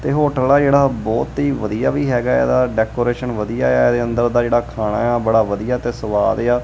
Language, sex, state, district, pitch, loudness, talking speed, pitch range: Punjabi, male, Punjab, Kapurthala, 120 Hz, -17 LUFS, 215 wpm, 110-125 Hz